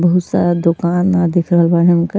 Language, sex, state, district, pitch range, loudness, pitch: Bhojpuri, female, Uttar Pradesh, Ghazipur, 170-175 Hz, -14 LUFS, 175 Hz